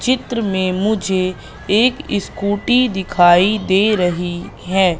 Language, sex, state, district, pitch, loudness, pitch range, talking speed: Hindi, female, Madhya Pradesh, Katni, 195 Hz, -16 LUFS, 185-215 Hz, 110 wpm